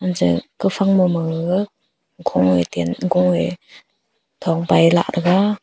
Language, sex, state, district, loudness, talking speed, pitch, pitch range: Wancho, female, Arunachal Pradesh, Longding, -18 LUFS, 115 wpm, 175 Hz, 165-190 Hz